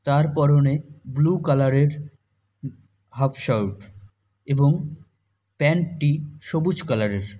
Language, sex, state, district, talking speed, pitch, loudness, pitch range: Bengali, male, West Bengal, Malda, 90 wpm, 140 Hz, -22 LUFS, 105-150 Hz